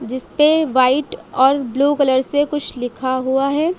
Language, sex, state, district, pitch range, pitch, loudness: Hindi, female, Uttar Pradesh, Lucknow, 260-295 Hz, 270 Hz, -17 LUFS